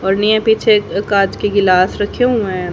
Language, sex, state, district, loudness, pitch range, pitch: Hindi, female, Haryana, Rohtak, -14 LUFS, 195-215 Hz, 205 Hz